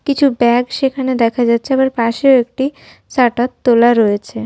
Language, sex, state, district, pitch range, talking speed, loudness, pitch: Bengali, female, West Bengal, Jhargram, 235-265 Hz, 150 wpm, -14 LUFS, 245 Hz